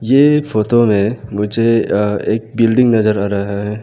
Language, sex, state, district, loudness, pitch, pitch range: Hindi, male, Arunachal Pradesh, Lower Dibang Valley, -14 LUFS, 110 Hz, 105-115 Hz